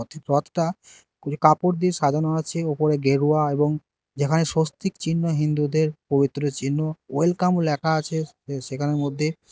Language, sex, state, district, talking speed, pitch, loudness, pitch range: Bengali, male, Karnataka, Bangalore, 130 wpm, 150 Hz, -23 LUFS, 145-160 Hz